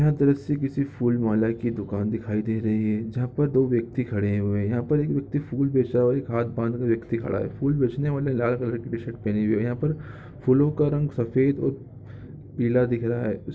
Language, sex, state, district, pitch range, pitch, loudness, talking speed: Hindi, male, Chhattisgarh, Bilaspur, 115-140 Hz, 120 Hz, -25 LUFS, 235 wpm